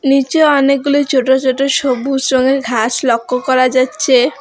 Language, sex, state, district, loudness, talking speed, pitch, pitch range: Bengali, female, West Bengal, Alipurduar, -13 LUFS, 135 wpm, 265 Hz, 255-275 Hz